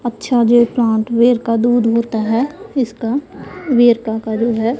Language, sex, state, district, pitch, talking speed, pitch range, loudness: Hindi, female, Punjab, Pathankot, 235 Hz, 150 wpm, 230-245 Hz, -15 LUFS